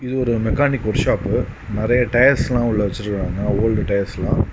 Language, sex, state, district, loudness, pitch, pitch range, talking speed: Tamil, male, Tamil Nadu, Kanyakumari, -19 LUFS, 110 Hz, 105-125 Hz, 160 wpm